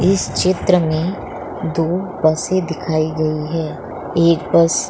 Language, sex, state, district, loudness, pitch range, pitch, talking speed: Hindi, female, Bihar, Muzaffarpur, -18 LUFS, 155-185 Hz, 165 Hz, 120 wpm